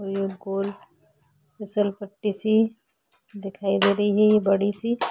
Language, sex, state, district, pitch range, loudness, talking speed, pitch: Hindi, female, Chhattisgarh, Sukma, 195-210 Hz, -23 LUFS, 150 wpm, 200 Hz